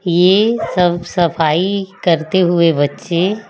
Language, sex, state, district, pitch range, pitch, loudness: Hindi, female, Chhattisgarh, Raipur, 170-190 Hz, 175 Hz, -15 LUFS